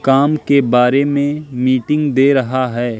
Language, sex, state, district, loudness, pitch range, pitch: Hindi, male, Madhya Pradesh, Katni, -14 LUFS, 125-145 Hz, 135 Hz